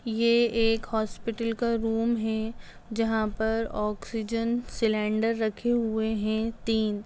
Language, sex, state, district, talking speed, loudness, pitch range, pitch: Hindi, female, Bihar, Darbhanga, 120 wpm, -27 LUFS, 220-230 Hz, 225 Hz